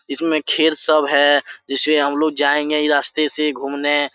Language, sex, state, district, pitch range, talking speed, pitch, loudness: Hindi, male, Jharkhand, Sahebganj, 145-155 Hz, 175 wpm, 145 Hz, -17 LUFS